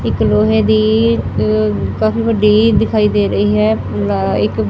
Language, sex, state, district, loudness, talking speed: Punjabi, female, Punjab, Fazilka, -13 LUFS, 140 wpm